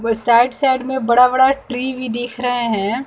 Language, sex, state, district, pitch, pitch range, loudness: Hindi, female, Bihar, West Champaran, 250 Hz, 235-260 Hz, -16 LUFS